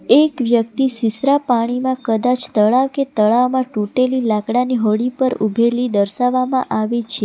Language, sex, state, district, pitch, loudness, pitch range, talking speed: Gujarati, female, Gujarat, Valsad, 245 Hz, -17 LUFS, 225-255 Hz, 130 wpm